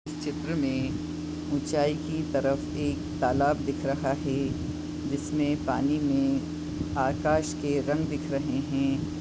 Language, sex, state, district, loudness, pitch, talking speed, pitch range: Hindi, female, Maharashtra, Nagpur, -29 LUFS, 145 Hz, 130 wpm, 140-150 Hz